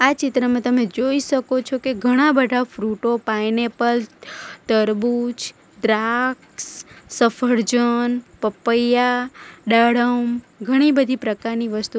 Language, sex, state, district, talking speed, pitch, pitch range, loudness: Gujarati, female, Gujarat, Valsad, 100 wpm, 240 Hz, 230-255 Hz, -19 LUFS